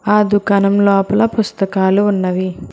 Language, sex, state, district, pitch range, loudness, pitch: Telugu, female, Telangana, Hyderabad, 190-205 Hz, -14 LUFS, 200 Hz